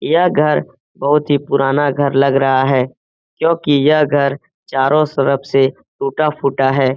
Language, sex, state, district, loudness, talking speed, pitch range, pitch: Hindi, male, Bihar, Jamui, -15 LUFS, 145 wpm, 135-150 Hz, 140 Hz